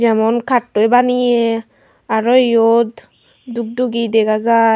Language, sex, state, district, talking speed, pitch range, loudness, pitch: Chakma, female, Tripura, Unakoti, 115 wpm, 225-245 Hz, -15 LUFS, 230 Hz